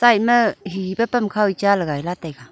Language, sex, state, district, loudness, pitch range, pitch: Wancho, female, Arunachal Pradesh, Longding, -19 LUFS, 180-230 Hz, 200 Hz